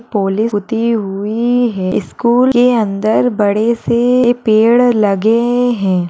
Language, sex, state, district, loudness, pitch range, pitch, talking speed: Hindi, female, Uttar Pradesh, Budaun, -13 LUFS, 205-240 Hz, 230 Hz, 120 wpm